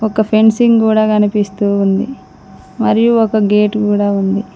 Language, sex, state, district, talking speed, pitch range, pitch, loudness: Telugu, female, Telangana, Mahabubabad, 130 wpm, 205-220 Hz, 215 Hz, -13 LUFS